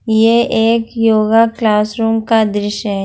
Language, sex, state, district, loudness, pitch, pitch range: Hindi, female, Jharkhand, Ranchi, -13 LUFS, 225 Hz, 215-225 Hz